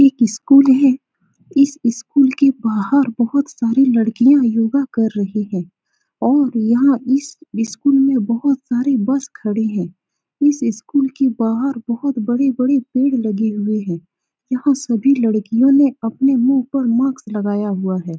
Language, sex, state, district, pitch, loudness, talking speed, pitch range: Hindi, female, Bihar, Saran, 250 Hz, -16 LUFS, 150 wpm, 225-275 Hz